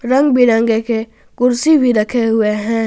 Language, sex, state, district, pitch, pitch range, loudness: Hindi, female, Jharkhand, Garhwa, 230 Hz, 225-250 Hz, -14 LUFS